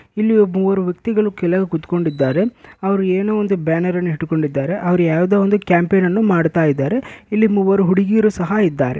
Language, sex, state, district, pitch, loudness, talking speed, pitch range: Kannada, male, Karnataka, Bellary, 190 Hz, -17 LUFS, 160 wpm, 170-205 Hz